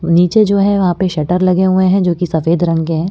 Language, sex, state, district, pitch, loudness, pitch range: Hindi, female, Delhi, New Delhi, 180 Hz, -13 LUFS, 170-185 Hz